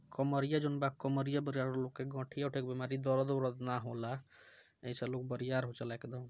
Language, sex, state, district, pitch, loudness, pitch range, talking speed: Bhojpuri, male, Bihar, Gopalganj, 130 Hz, -38 LUFS, 125-135 Hz, 135 wpm